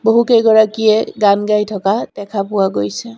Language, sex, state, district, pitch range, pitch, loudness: Assamese, female, Assam, Sonitpur, 200-220 Hz, 210 Hz, -14 LUFS